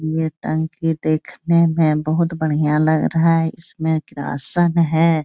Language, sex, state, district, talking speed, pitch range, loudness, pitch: Hindi, female, Bihar, Jahanabad, 135 wpm, 155-165 Hz, -18 LUFS, 160 Hz